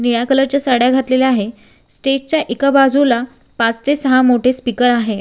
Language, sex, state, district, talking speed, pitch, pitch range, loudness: Marathi, female, Maharashtra, Sindhudurg, 185 wpm, 250 Hz, 235-270 Hz, -14 LUFS